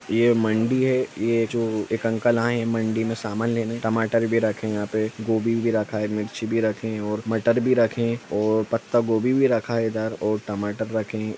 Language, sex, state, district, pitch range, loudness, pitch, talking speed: Hindi, male, Jharkhand, Jamtara, 110-115 Hz, -23 LUFS, 115 Hz, 220 wpm